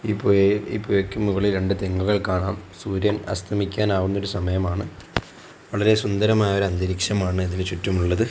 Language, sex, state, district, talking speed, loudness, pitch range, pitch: Malayalam, male, Kerala, Kozhikode, 130 wpm, -23 LUFS, 95-105 Hz, 100 Hz